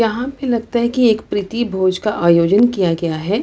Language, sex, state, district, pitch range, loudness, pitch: Hindi, female, Bihar, Lakhisarai, 185-235 Hz, -16 LUFS, 215 Hz